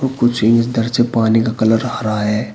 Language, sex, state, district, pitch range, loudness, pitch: Hindi, male, Uttar Pradesh, Shamli, 110-120 Hz, -15 LUFS, 115 Hz